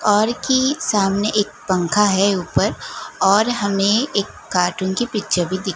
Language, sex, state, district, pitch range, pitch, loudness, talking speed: Hindi, female, Gujarat, Gandhinagar, 190-215 Hz, 200 Hz, -18 LUFS, 155 wpm